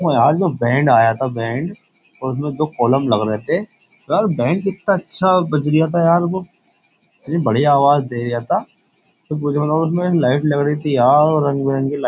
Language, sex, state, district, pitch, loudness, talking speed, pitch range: Hindi, male, Uttar Pradesh, Jyotiba Phule Nagar, 145 Hz, -17 LUFS, 185 wpm, 130-170 Hz